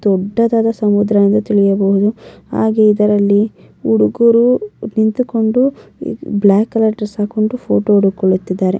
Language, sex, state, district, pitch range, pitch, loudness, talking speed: Kannada, female, Karnataka, Mysore, 200-220 Hz, 210 Hz, -14 LUFS, 95 wpm